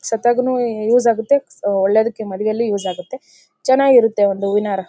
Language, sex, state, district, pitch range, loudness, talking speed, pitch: Kannada, female, Karnataka, Bellary, 200-245 Hz, -17 LUFS, 145 wpm, 225 Hz